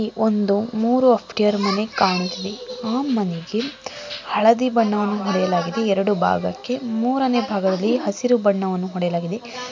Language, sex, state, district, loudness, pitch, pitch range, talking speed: Kannada, female, Karnataka, Mysore, -21 LUFS, 215 Hz, 195-245 Hz, 110 wpm